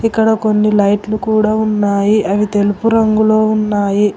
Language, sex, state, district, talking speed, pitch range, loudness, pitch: Telugu, female, Telangana, Hyderabad, 130 wpm, 205-215 Hz, -13 LUFS, 215 Hz